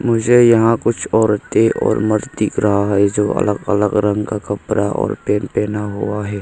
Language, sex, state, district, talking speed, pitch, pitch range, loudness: Hindi, male, Arunachal Pradesh, Longding, 185 wpm, 105 Hz, 105-110 Hz, -16 LUFS